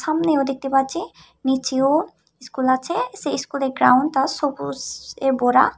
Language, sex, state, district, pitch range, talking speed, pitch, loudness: Bengali, female, Tripura, Unakoti, 260-305 Hz, 115 wpm, 270 Hz, -21 LUFS